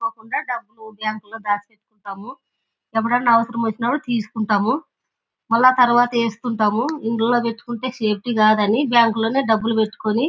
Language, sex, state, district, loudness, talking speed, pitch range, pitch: Telugu, female, Andhra Pradesh, Anantapur, -19 LUFS, 135 wpm, 215-240 Hz, 230 Hz